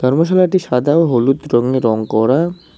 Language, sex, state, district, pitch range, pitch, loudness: Bengali, male, West Bengal, Cooch Behar, 120-165 Hz, 135 Hz, -14 LUFS